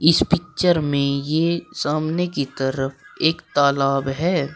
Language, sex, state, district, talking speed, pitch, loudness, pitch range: Hindi, female, Uttar Pradesh, Shamli, 130 wpm, 150 Hz, -21 LUFS, 140-170 Hz